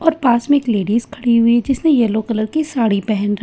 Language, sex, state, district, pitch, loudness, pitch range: Hindi, female, Bihar, Katihar, 235 Hz, -16 LUFS, 220-280 Hz